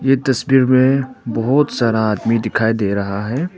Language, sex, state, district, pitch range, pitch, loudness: Hindi, male, Arunachal Pradesh, Papum Pare, 110-135 Hz, 125 Hz, -16 LUFS